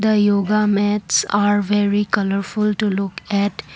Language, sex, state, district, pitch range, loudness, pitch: English, female, Assam, Kamrup Metropolitan, 200-210 Hz, -18 LUFS, 205 Hz